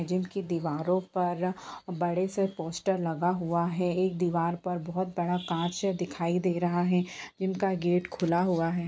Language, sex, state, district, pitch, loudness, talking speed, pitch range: Hindi, female, Bihar, Purnia, 180 Hz, -29 LUFS, 155 wpm, 170-185 Hz